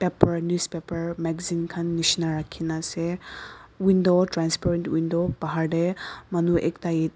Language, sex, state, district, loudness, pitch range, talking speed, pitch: Nagamese, female, Nagaland, Dimapur, -25 LUFS, 165-175 Hz, 115 wpm, 170 Hz